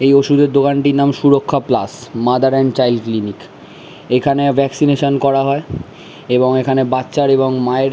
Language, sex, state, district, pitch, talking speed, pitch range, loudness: Bengali, male, West Bengal, Malda, 135 Hz, 160 wpm, 130-140 Hz, -14 LUFS